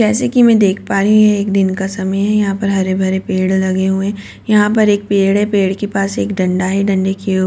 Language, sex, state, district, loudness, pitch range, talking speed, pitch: Hindi, female, Delhi, New Delhi, -14 LUFS, 190-205 Hz, 280 wpm, 195 Hz